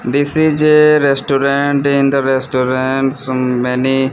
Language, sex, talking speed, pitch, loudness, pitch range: English, male, 130 wpm, 135 Hz, -13 LUFS, 130-140 Hz